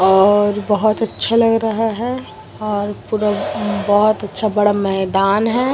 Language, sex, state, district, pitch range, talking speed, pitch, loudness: Hindi, female, Bihar, Vaishali, 205-225 Hz, 145 wpm, 210 Hz, -16 LUFS